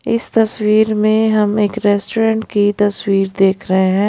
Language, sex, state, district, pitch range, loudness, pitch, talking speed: Hindi, female, Punjab, Pathankot, 200-220 Hz, -15 LUFS, 210 Hz, 160 wpm